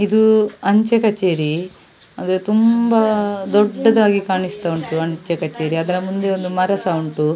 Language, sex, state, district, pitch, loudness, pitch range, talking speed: Kannada, female, Karnataka, Dakshina Kannada, 195 Hz, -17 LUFS, 170-210 Hz, 130 wpm